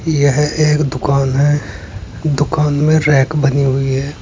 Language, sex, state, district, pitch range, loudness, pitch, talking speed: Hindi, male, Uttar Pradesh, Saharanpur, 135-150 Hz, -14 LUFS, 145 Hz, 140 wpm